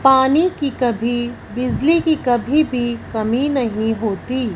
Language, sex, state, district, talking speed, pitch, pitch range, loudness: Hindi, female, Punjab, Fazilka, 130 wpm, 250 Hz, 235-280 Hz, -18 LUFS